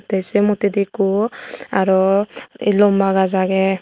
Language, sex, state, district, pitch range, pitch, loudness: Chakma, female, Tripura, West Tripura, 190-205 Hz, 200 Hz, -17 LUFS